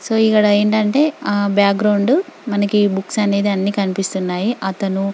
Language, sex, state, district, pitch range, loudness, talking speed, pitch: Telugu, female, Telangana, Karimnagar, 195-215 Hz, -17 LUFS, 115 wpm, 205 Hz